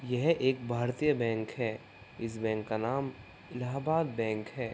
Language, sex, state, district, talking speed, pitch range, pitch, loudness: Hindi, male, Uttar Pradesh, Gorakhpur, 150 wpm, 110-130 Hz, 120 Hz, -32 LUFS